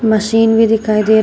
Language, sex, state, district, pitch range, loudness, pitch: Hindi, female, Uttar Pradesh, Shamli, 215-225 Hz, -12 LUFS, 220 Hz